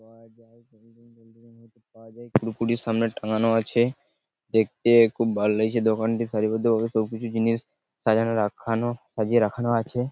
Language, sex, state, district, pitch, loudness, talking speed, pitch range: Bengali, male, West Bengal, Purulia, 115 Hz, -24 LUFS, 105 wpm, 110-115 Hz